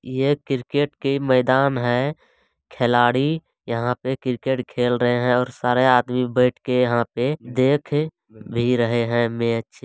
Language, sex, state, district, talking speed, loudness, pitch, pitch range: Maithili, male, Bihar, Supaul, 145 wpm, -21 LUFS, 125 Hz, 120-135 Hz